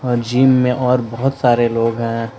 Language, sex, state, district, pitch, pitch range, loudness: Hindi, male, Jharkhand, Palamu, 120 Hz, 115-130 Hz, -16 LUFS